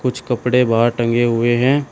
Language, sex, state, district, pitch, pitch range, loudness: Hindi, male, Uttar Pradesh, Shamli, 120 Hz, 120-125 Hz, -16 LUFS